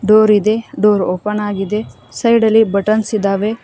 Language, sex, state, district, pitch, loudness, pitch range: Kannada, female, Karnataka, Koppal, 210 Hz, -14 LUFS, 205-220 Hz